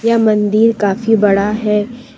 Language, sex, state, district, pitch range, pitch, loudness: Hindi, female, Jharkhand, Deoghar, 205-230 Hz, 215 Hz, -13 LUFS